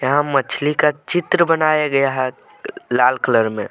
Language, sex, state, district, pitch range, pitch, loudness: Hindi, male, Jharkhand, Deoghar, 130-150 Hz, 145 Hz, -17 LUFS